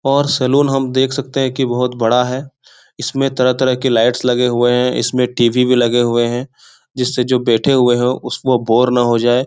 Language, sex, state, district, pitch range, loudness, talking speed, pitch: Hindi, male, Bihar, Jahanabad, 120-135 Hz, -15 LUFS, 210 wpm, 125 Hz